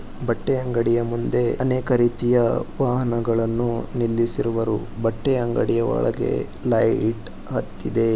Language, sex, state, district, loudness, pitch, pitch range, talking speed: Kannada, male, Karnataka, Bijapur, -22 LUFS, 120 Hz, 115-125 Hz, 110 wpm